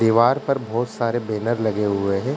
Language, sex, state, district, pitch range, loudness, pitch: Hindi, male, Uttar Pradesh, Ghazipur, 105-120 Hz, -21 LUFS, 115 Hz